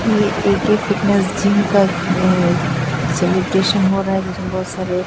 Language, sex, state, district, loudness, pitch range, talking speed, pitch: Hindi, female, Bihar, Katihar, -17 LUFS, 180-200 Hz, 155 wpm, 185 Hz